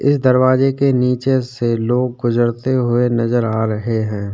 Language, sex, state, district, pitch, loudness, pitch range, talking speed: Hindi, male, Chhattisgarh, Sukma, 120 Hz, -16 LUFS, 115-130 Hz, 165 wpm